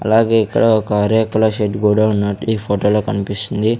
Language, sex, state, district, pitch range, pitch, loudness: Telugu, male, Andhra Pradesh, Sri Satya Sai, 105-110 Hz, 105 Hz, -16 LUFS